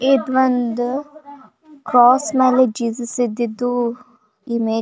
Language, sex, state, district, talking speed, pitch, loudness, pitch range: Kannada, female, Karnataka, Belgaum, 85 wpm, 245 Hz, -18 LUFS, 235-260 Hz